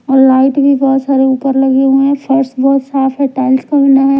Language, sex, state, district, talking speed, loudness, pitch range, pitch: Hindi, female, Punjab, Pathankot, 240 wpm, -11 LUFS, 265-275 Hz, 270 Hz